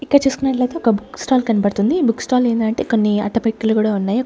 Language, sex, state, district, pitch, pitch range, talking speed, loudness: Telugu, female, Andhra Pradesh, Sri Satya Sai, 230 Hz, 215-250 Hz, 195 wpm, -17 LUFS